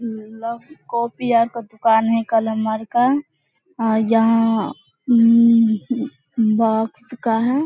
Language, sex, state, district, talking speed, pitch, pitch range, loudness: Hindi, female, Bihar, Vaishali, 110 wpm, 230 Hz, 225-240 Hz, -18 LUFS